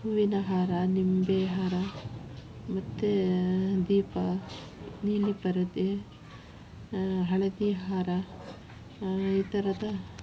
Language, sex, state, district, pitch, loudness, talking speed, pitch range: Kannada, female, Karnataka, Shimoga, 185 Hz, -30 LUFS, 75 wpm, 175-195 Hz